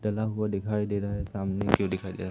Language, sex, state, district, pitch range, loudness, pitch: Hindi, female, Madhya Pradesh, Umaria, 95-105 Hz, -29 LUFS, 100 Hz